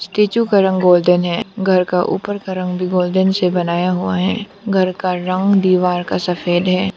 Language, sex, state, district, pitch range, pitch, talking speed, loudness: Hindi, female, Arunachal Pradesh, Papum Pare, 180-195 Hz, 185 Hz, 200 wpm, -16 LUFS